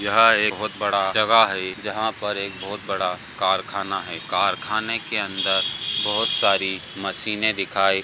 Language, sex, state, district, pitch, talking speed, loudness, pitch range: Hindi, male, Bihar, Bhagalpur, 100 Hz, 155 wpm, -22 LUFS, 95-110 Hz